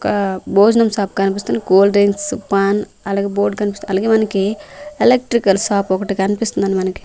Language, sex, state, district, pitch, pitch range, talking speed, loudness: Telugu, female, Andhra Pradesh, Manyam, 200 Hz, 195-215 Hz, 145 wpm, -16 LUFS